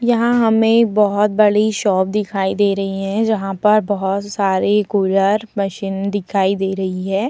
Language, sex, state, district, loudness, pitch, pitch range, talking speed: Hindi, female, Uttar Pradesh, Muzaffarnagar, -17 LUFS, 205 Hz, 195-210 Hz, 155 wpm